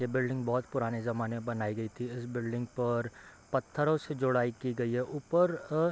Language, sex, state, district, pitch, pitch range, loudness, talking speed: Hindi, male, Bihar, East Champaran, 125 Hz, 120-135 Hz, -33 LUFS, 210 wpm